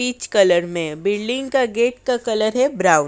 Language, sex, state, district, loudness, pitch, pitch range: Hindi, female, Uttar Pradesh, Jyotiba Phule Nagar, -19 LUFS, 230 Hz, 195-250 Hz